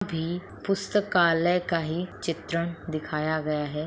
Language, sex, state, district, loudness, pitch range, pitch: Hindi, female, Bihar, Begusarai, -27 LUFS, 155-180 Hz, 165 Hz